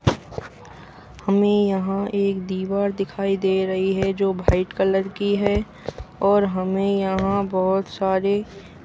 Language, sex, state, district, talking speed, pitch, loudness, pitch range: Hindi, male, Chhattisgarh, Bastar, 150 wpm, 195 Hz, -22 LUFS, 190-200 Hz